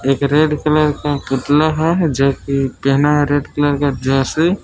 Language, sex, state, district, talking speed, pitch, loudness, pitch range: Hindi, male, Jharkhand, Palamu, 195 wpm, 145 Hz, -16 LUFS, 135-150 Hz